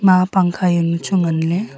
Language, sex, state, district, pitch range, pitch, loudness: Wancho, female, Arunachal Pradesh, Longding, 170-185 Hz, 180 Hz, -17 LUFS